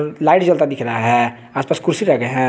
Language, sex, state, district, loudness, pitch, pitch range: Hindi, male, Jharkhand, Garhwa, -17 LUFS, 125 Hz, 120-150 Hz